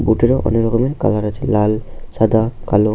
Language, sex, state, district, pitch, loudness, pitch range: Bengali, male, West Bengal, Malda, 110 Hz, -17 LUFS, 105-115 Hz